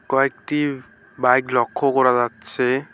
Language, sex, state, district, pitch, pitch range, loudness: Bengali, male, West Bengal, Alipurduar, 130 Hz, 125-135 Hz, -20 LUFS